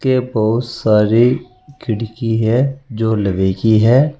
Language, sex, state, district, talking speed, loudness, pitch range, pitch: Hindi, male, Uttar Pradesh, Saharanpur, 130 wpm, -15 LUFS, 110-130 Hz, 115 Hz